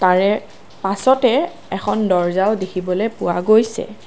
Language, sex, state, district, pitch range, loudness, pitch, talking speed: Assamese, female, Assam, Kamrup Metropolitan, 185-220 Hz, -18 LUFS, 200 Hz, 105 wpm